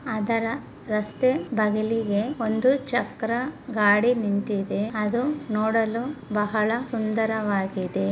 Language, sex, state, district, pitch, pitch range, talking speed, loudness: Kannada, female, Karnataka, Bellary, 220 Hz, 210-240 Hz, 80 wpm, -25 LUFS